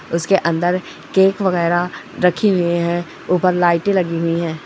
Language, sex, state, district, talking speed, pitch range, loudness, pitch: Hindi, female, Bihar, Darbhanga, 155 wpm, 170-185 Hz, -17 LUFS, 175 Hz